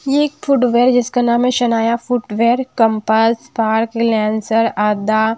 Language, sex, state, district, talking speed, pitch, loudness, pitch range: Hindi, female, Odisha, Sambalpur, 135 wpm, 230 Hz, -15 LUFS, 220-245 Hz